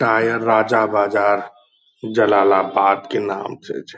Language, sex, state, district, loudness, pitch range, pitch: Angika, male, Bihar, Purnia, -17 LUFS, 100-110 Hz, 100 Hz